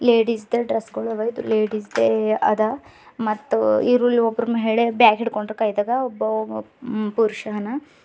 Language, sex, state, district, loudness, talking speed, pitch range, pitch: Kannada, female, Karnataka, Bidar, -21 LUFS, 140 wpm, 210-235 Hz, 220 Hz